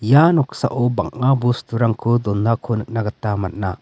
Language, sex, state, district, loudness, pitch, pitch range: Garo, male, Meghalaya, West Garo Hills, -19 LUFS, 115 Hz, 105-125 Hz